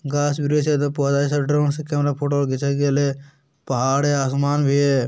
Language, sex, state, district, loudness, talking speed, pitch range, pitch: Hindi, male, Bihar, Jamui, -20 LUFS, 190 wpm, 140-145 Hz, 145 Hz